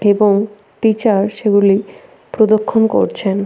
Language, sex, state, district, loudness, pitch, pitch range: Bengali, female, West Bengal, Paschim Medinipur, -14 LUFS, 210 Hz, 200-220 Hz